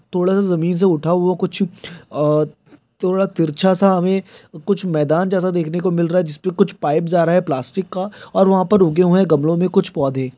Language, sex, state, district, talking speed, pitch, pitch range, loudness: Hindi, male, Bihar, Sitamarhi, 215 wpm, 180 Hz, 165-190 Hz, -17 LUFS